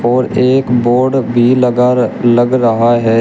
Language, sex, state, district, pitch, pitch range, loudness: Hindi, male, Uttar Pradesh, Shamli, 120 Hz, 120-125 Hz, -11 LUFS